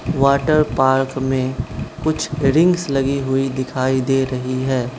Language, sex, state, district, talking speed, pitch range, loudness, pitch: Hindi, male, Manipur, Imphal West, 130 wpm, 130-140 Hz, -18 LUFS, 135 Hz